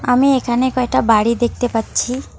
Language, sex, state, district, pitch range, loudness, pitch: Bengali, female, West Bengal, Alipurduar, 235-255 Hz, -16 LUFS, 245 Hz